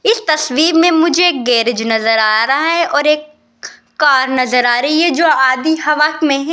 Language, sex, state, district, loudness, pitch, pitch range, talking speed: Hindi, female, Rajasthan, Jaipur, -12 LUFS, 300 Hz, 255-325 Hz, 200 wpm